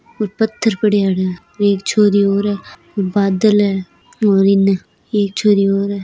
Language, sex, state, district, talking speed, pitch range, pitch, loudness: Hindi, female, Rajasthan, Churu, 150 wpm, 195-210 Hz, 200 Hz, -15 LUFS